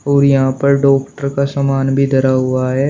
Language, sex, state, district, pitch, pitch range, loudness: Hindi, male, Uttar Pradesh, Shamli, 135 Hz, 135-140 Hz, -14 LUFS